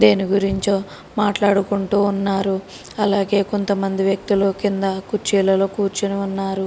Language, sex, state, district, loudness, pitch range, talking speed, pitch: Telugu, female, Telangana, Karimnagar, -19 LUFS, 195-200 Hz, 100 wpm, 195 Hz